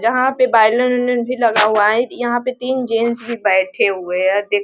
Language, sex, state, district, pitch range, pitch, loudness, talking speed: Hindi, female, Bihar, Sitamarhi, 210-250 Hz, 235 Hz, -16 LUFS, 245 wpm